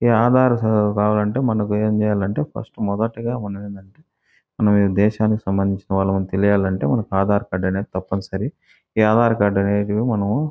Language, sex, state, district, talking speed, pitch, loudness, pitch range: Telugu, male, Andhra Pradesh, Chittoor, 145 wpm, 105 Hz, -19 LUFS, 100-110 Hz